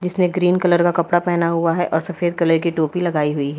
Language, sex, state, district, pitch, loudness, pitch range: Hindi, female, Uttar Pradesh, Lalitpur, 175 Hz, -18 LUFS, 165-180 Hz